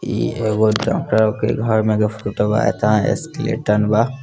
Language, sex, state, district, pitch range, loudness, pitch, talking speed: Hindi, male, Bihar, East Champaran, 105-120 Hz, -18 LUFS, 110 Hz, 130 wpm